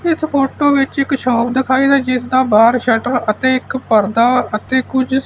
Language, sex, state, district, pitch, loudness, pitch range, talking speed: Punjabi, male, Punjab, Fazilka, 260 Hz, -14 LUFS, 240-270 Hz, 180 wpm